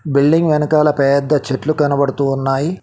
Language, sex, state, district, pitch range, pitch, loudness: Telugu, male, Telangana, Mahabubabad, 140-155 Hz, 145 Hz, -15 LUFS